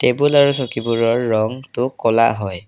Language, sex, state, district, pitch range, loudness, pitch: Assamese, male, Assam, Kamrup Metropolitan, 110-130 Hz, -17 LUFS, 115 Hz